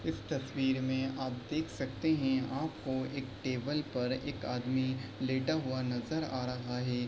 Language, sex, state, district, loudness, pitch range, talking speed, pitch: Hindi, male, Bihar, East Champaran, -35 LUFS, 125-140 Hz, 160 wpm, 130 Hz